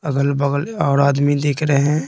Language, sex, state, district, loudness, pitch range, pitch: Hindi, male, Bihar, Patna, -17 LUFS, 140-145 Hz, 140 Hz